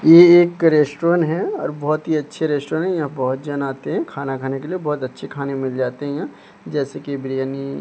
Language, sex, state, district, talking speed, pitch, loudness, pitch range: Hindi, male, Odisha, Sambalpur, 230 wpm, 145 Hz, -19 LUFS, 135-160 Hz